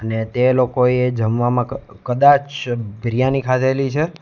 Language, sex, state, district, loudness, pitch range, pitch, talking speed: Gujarati, male, Gujarat, Gandhinagar, -18 LUFS, 120-135 Hz, 125 Hz, 130 wpm